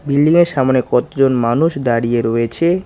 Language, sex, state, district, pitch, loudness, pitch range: Bengali, male, West Bengal, Cooch Behar, 135 Hz, -15 LUFS, 120-160 Hz